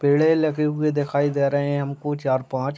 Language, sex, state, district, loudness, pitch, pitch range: Hindi, male, Bihar, Sitamarhi, -22 LUFS, 145 Hz, 140-150 Hz